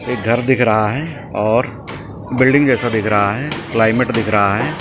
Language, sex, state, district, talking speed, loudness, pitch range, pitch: Hindi, male, Maharashtra, Mumbai Suburban, 185 wpm, -16 LUFS, 110-130 Hz, 120 Hz